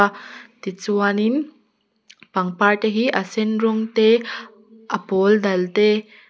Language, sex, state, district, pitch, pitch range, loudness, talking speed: Mizo, female, Mizoram, Aizawl, 215 Hz, 205-225 Hz, -19 LUFS, 115 wpm